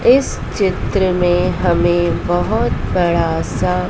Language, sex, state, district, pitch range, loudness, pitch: Hindi, female, Madhya Pradesh, Dhar, 170-185 Hz, -16 LUFS, 175 Hz